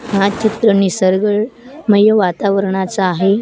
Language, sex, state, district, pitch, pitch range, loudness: Marathi, female, Maharashtra, Gondia, 205 Hz, 195-215 Hz, -14 LUFS